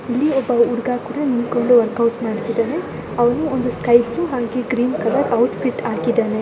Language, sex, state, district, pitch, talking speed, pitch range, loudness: Kannada, female, Karnataka, Belgaum, 240 Hz, 160 wpm, 235-255 Hz, -18 LUFS